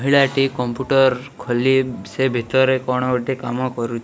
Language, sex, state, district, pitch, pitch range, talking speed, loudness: Odia, male, Odisha, Malkangiri, 130 Hz, 120-135 Hz, 150 wpm, -19 LUFS